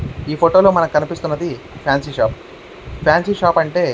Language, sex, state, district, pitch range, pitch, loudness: Telugu, male, Andhra Pradesh, Krishna, 150-175 Hz, 165 Hz, -16 LUFS